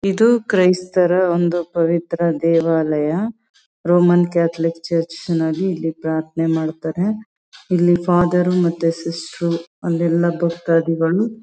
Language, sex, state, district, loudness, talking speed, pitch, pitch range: Kannada, female, Karnataka, Chamarajanagar, -18 LUFS, 110 wpm, 170 Hz, 165-180 Hz